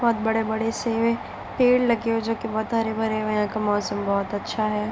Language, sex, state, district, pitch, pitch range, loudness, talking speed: Hindi, female, Bihar, Darbhanga, 220 Hz, 210-230 Hz, -24 LUFS, 220 wpm